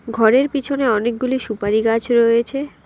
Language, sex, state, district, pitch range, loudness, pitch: Bengali, female, West Bengal, Alipurduar, 225-265 Hz, -17 LUFS, 235 Hz